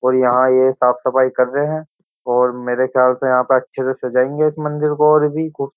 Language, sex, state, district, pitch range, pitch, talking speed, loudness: Hindi, male, Uttar Pradesh, Jyotiba Phule Nagar, 125-150 Hz, 130 Hz, 250 wpm, -16 LUFS